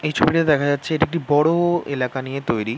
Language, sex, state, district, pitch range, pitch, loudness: Bengali, male, West Bengal, North 24 Parganas, 135-165 Hz, 150 Hz, -20 LUFS